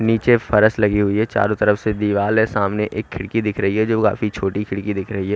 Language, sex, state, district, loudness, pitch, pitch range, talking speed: Hindi, male, Haryana, Rohtak, -19 LUFS, 105 Hz, 100-110 Hz, 255 wpm